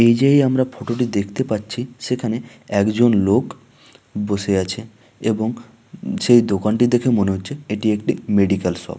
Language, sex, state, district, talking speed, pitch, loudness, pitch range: Bengali, male, West Bengal, Dakshin Dinajpur, 165 wpm, 110 Hz, -19 LUFS, 100-120 Hz